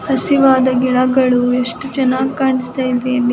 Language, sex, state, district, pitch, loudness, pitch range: Kannada, female, Karnataka, Dakshina Kannada, 255 Hz, -15 LUFS, 250-265 Hz